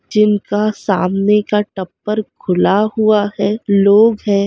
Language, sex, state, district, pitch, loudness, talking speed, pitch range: Hindi, female, Chhattisgarh, Raigarh, 205 Hz, -14 LUFS, 120 wpm, 200-215 Hz